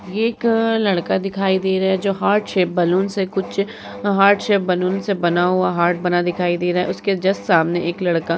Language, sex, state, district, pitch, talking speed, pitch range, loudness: Hindi, female, Uttar Pradesh, Muzaffarnagar, 190 Hz, 230 wpm, 175-200 Hz, -18 LUFS